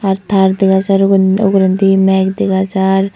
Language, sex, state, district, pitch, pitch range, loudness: Chakma, female, Tripura, Unakoti, 195 Hz, 190-195 Hz, -12 LUFS